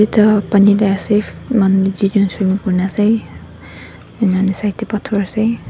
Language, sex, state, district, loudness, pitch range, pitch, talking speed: Nagamese, female, Nagaland, Dimapur, -15 LUFS, 190-210 Hz, 200 Hz, 160 wpm